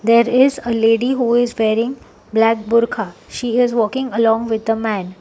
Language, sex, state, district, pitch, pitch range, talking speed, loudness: English, female, Telangana, Hyderabad, 230 Hz, 225-245 Hz, 185 wpm, -17 LUFS